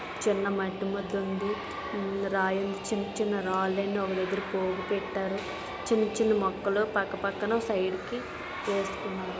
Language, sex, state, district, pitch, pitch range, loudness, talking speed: Telugu, female, Andhra Pradesh, Visakhapatnam, 195 Hz, 190-205 Hz, -30 LUFS, 120 wpm